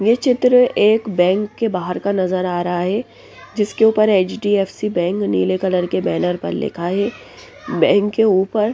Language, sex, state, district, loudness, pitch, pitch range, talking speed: Hindi, female, Bihar, West Champaran, -17 LUFS, 205 Hz, 185-220 Hz, 170 wpm